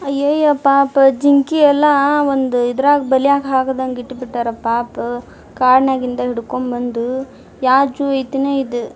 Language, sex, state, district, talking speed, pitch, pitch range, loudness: Kannada, female, Karnataka, Dharwad, 125 wpm, 265 Hz, 250-280 Hz, -15 LUFS